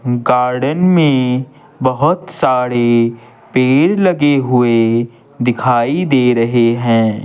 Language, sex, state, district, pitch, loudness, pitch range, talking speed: Hindi, male, Bihar, Patna, 125 Hz, -13 LUFS, 120-140 Hz, 90 wpm